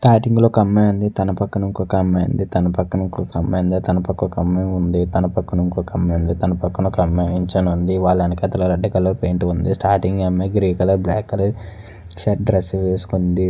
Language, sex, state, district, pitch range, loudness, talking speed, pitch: Telugu, male, Andhra Pradesh, Visakhapatnam, 90-95 Hz, -18 LUFS, 210 wpm, 95 Hz